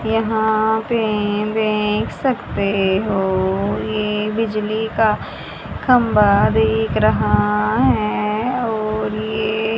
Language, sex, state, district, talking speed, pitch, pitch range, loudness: Hindi, female, Haryana, Charkhi Dadri, 90 wpm, 215 Hz, 190-220 Hz, -18 LUFS